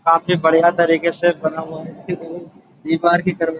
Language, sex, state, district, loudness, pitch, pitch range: Hindi, male, Uttar Pradesh, Budaun, -17 LUFS, 165 Hz, 165-175 Hz